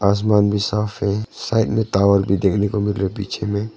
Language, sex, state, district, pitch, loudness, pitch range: Hindi, male, Arunachal Pradesh, Longding, 105 Hz, -19 LUFS, 100-105 Hz